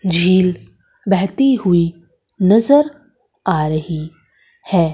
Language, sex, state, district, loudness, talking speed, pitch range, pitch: Hindi, female, Madhya Pradesh, Umaria, -16 LUFS, 85 wpm, 165-215 Hz, 185 Hz